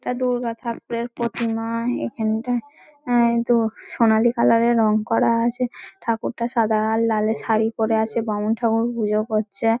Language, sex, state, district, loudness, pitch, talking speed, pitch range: Bengali, female, West Bengal, Dakshin Dinajpur, -21 LUFS, 230 Hz, 145 wpm, 220-235 Hz